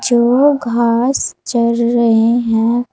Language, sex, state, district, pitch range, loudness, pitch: Hindi, female, Uttar Pradesh, Saharanpur, 235-245 Hz, -14 LUFS, 235 Hz